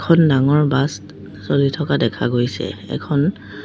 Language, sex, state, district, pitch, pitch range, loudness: Assamese, female, Assam, Sonitpur, 135 Hz, 100-150 Hz, -18 LUFS